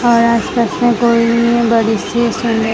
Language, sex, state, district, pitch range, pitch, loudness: Hindi, female, Gujarat, Gandhinagar, 230-235 Hz, 235 Hz, -13 LUFS